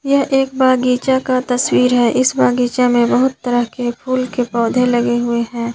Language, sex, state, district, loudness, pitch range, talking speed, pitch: Hindi, female, Jharkhand, Garhwa, -15 LUFS, 240-255 Hz, 190 wpm, 250 Hz